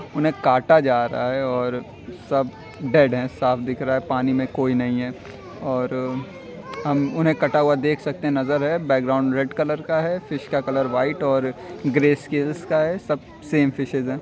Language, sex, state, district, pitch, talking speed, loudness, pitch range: Hindi, male, Uttar Pradesh, Etah, 135 Hz, 200 wpm, -22 LUFS, 130-150 Hz